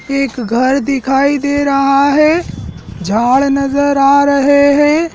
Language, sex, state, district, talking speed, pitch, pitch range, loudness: Hindi, male, Madhya Pradesh, Dhar, 130 wpm, 275 Hz, 275-285 Hz, -12 LUFS